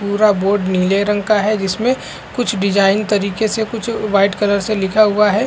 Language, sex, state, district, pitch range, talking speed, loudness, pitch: Hindi, male, Chhattisgarh, Korba, 200-215 Hz, 200 wpm, -16 LUFS, 205 Hz